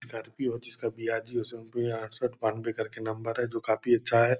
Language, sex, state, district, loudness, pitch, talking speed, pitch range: Hindi, male, Bihar, Purnia, -31 LUFS, 115 Hz, 205 wpm, 110-120 Hz